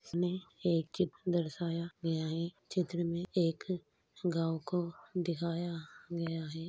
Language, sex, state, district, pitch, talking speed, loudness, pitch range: Hindi, female, Uttar Pradesh, Ghazipur, 170 Hz, 135 wpm, -36 LUFS, 165-175 Hz